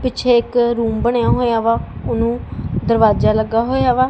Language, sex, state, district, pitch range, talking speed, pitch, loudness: Punjabi, female, Punjab, Kapurthala, 230-245 Hz, 160 wpm, 235 Hz, -16 LUFS